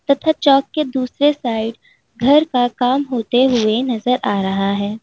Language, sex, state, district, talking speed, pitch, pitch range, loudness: Hindi, female, Uttar Pradesh, Lalitpur, 165 wpm, 250 Hz, 225-275 Hz, -17 LUFS